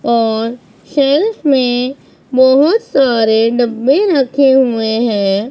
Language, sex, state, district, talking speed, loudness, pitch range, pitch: Hindi, female, Punjab, Pathankot, 100 wpm, -13 LUFS, 230-275 Hz, 255 Hz